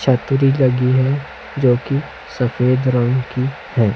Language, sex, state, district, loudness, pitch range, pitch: Hindi, male, Chhattisgarh, Raipur, -17 LUFS, 125-135 Hz, 130 Hz